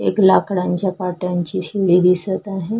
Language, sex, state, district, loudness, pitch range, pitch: Marathi, female, Maharashtra, Sindhudurg, -18 LUFS, 180-190 Hz, 185 Hz